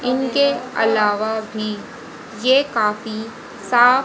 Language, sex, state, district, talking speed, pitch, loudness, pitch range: Hindi, female, Haryana, Rohtak, 90 wpm, 225 Hz, -19 LUFS, 215-255 Hz